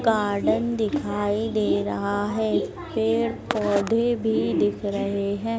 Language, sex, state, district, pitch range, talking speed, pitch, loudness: Hindi, female, Madhya Pradesh, Dhar, 200-225 Hz, 120 wpm, 210 Hz, -24 LUFS